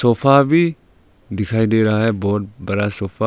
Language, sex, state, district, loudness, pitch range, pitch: Hindi, male, Arunachal Pradesh, Longding, -17 LUFS, 100-115 Hz, 105 Hz